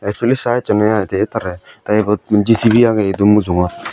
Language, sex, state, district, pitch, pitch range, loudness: Chakma, male, Tripura, Dhalai, 105 Hz, 100-115 Hz, -14 LUFS